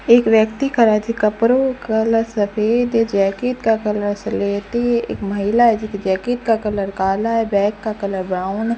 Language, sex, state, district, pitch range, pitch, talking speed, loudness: Hindi, female, Rajasthan, Bikaner, 200-230 Hz, 220 Hz, 190 wpm, -18 LUFS